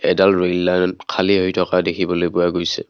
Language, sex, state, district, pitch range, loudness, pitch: Assamese, male, Assam, Kamrup Metropolitan, 90-95 Hz, -18 LUFS, 90 Hz